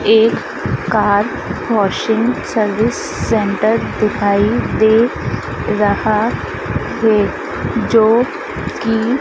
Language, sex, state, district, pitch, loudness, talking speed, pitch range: Hindi, female, Madhya Pradesh, Dhar, 220 Hz, -16 LUFS, 70 wpm, 205-225 Hz